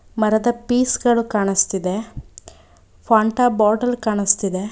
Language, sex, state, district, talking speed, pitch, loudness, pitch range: Kannada, female, Karnataka, Bangalore, 90 wpm, 220 Hz, -18 LUFS, 205-240 Hz